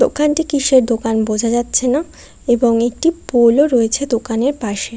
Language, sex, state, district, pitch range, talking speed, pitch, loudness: Bengali, female, West Bengal, Kolkata, 230-285 Hz, 155 wpm, 240 Hz, -15 LUFS